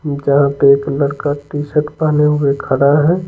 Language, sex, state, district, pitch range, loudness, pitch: Hindi, male, Bihar, Patna, 140-150 Hz, -14 LUFS, 145 Hz